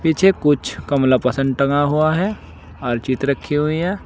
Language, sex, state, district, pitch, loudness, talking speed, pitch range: Hindi, male, Uttar Pradesh, Saharanpur, 145 Hz, -18 LUFS, 165 wpm, 135-160 Hz